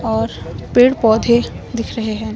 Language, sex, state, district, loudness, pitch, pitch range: Hindi, female, Himachal Pradesh, Shimla, -16 LUFS, 230 Hz, 220-240 Hz